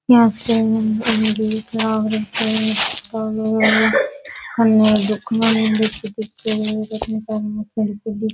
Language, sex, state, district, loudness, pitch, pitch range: Rajasthani, female, Rajasthan, Nagaur, -18 LUFS, 220 Hz, 215-220 Hz